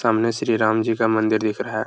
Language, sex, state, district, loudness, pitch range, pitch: Hindi, male, Uttar Pradesh, Hamirpur, -20 LUFS, 110-115 Hz, 110 Hz